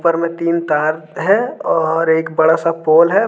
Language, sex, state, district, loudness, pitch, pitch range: Hindi, male, Jharkhand, Deoghar, -15 LUFS, 165 Hz, 160-170 Hz